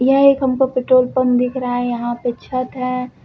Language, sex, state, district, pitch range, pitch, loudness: Hindi, female, Uttar Pradesh, Lucknow, 245-260 Hz, 255 Hz, -17 LUFS